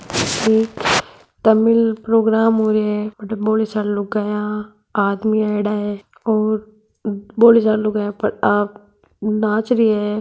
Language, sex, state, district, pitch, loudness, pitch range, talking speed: Marwari, female, Rajasthan, Nagaur, 215 Hz, -18 LUFS, 210-220 Hz, 115 wpm